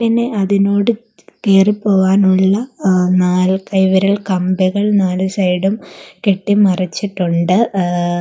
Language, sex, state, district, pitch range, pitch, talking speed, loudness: Malayalam, female, Kerala, Kollam, 185-205 Hz, 195 Hz, 90 wpm, -14 LUFS